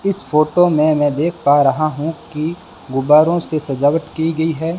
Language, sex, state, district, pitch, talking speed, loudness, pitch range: Hindi, male, Rajasthan, Bikaner, 155 Hz, 190 wpm, -16 LUFS, 150-165 Hz